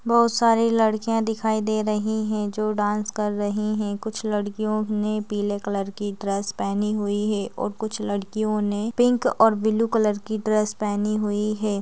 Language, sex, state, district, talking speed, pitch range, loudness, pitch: Hindi, female, Chhattisgarh, Raigarh, 180 wpm, 205-220 Hz, -23 LUFS, 215 Hz